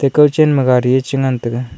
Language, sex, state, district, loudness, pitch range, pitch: Wancho, male, Arunachal Pradesh, Longding, -14 LUFS, 125-140 Hz, 130 Hz